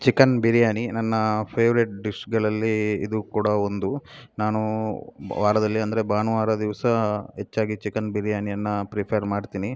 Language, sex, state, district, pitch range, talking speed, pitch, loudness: Kannada, male, Karnataka, Dakshina Kannada, 105-110 Hz, 110 wpm, 110 Hz, -24 LUFS